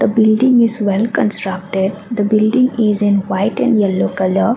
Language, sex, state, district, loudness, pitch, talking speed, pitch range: English, female, Assam, Kamrup Metropolitan, -15 LUFS, 210 Hz, 155 wpm, 195-225 Hz